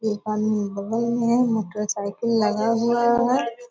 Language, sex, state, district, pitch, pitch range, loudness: Hindi, female, Bihar, Purnia, 225 Hz, 210-235 Hz, -22 LUFS